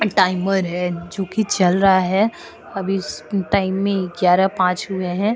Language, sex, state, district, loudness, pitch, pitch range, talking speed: Hindi, female, Goa, North and South Goa, -19 LUFS, 190 Hz, 180-195 Hz, 155 wpm